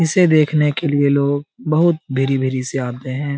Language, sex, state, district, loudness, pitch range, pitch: Hindi, male, Bihar, Jamui, -17 LUFS, 135-155 Hz, 145 Hz